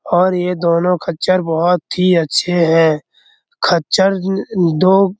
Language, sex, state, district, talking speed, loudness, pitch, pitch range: Hindi, male, Bihar, Araria, 140 wpm, -15 LUFS, 180 Hz, 170-185 Hz